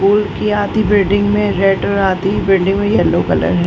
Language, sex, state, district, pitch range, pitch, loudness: Hindi, female, Uttar Pradesh, Varanasi, 195-205 Hz, 200 Hz, -14 LUFS